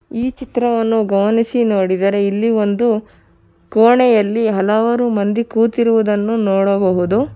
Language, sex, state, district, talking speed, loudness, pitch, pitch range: Kannada, female, Karnataka, Bangalore, 90 wpm, -15 LUFS, 220 Hz, 200-235 Hz